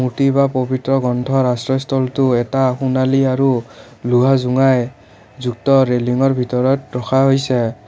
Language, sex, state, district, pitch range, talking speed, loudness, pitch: Assamese, male, Assam, Kamrup Metropolitan, 125-135 Hz, 100 wpm, -16 LUFS, 130 Hz